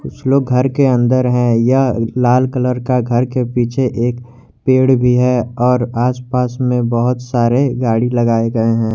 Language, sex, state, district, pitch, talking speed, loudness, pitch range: Hindi, male, Jharkhand, Garhwa, 125 Hz, 175 wpm, -15 LUFS, 120-125 Hz